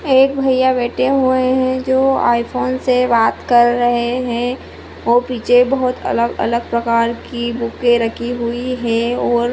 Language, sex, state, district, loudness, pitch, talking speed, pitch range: Hindi, female, Goa, North and South Goa, -16 LUFS, 245 Hz, 160 wpm, 235-255 Hz